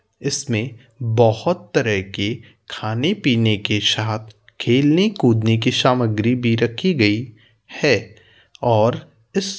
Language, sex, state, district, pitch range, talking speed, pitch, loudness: Bhojpuri, male, Uttar Pradesh, Gorakhpur, 110-130 Hz, 115 wpm, 115 Hz, -19 LUFS